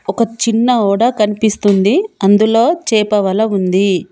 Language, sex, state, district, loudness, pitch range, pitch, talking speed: Telugu, female, Telangana, Komaram Bheem, -13 LUFS, 200-230 Hz, 215 Hz, 115 wpm